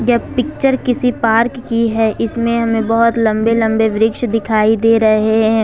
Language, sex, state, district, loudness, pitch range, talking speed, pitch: Hindi, female, Jharkhand, Ranchi, -14 LUFS, 220-235 Hz, 170 wpm, 225 Hz